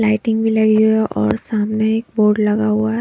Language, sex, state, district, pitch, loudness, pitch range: Hindi, female, Maharashtra, Mumbai Suburban, 215 Hz, -16 LUFS, 210-220 Hz